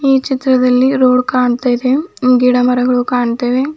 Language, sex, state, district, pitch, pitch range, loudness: Kannada, female, Karnataka, Bidar, 250 Hz, 250-265 Hz, -13 LUFS